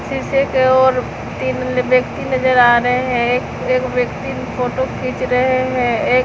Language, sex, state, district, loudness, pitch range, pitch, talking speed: Hindi, female, Jharkhand, Garhwa, -16 LUFS, 245-255 Hz, 250 Hz, 165 wpm